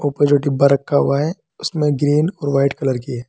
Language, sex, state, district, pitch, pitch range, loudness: Hindi, male, Uttar Pradesh, Saharanpur, 145 Hz, 140-150 Hz, -17 LUFS